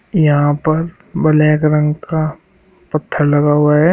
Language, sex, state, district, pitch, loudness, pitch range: Hindi, male, Uttar Pradesh, Shamli, 155 Hz, -14 LUFS, 150-170 Hz